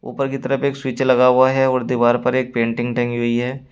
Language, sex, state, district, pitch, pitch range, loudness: Hindi, male, Uttar Pradesh, Shamli, 130 Hz, 120-130 Hz, -18 LUFS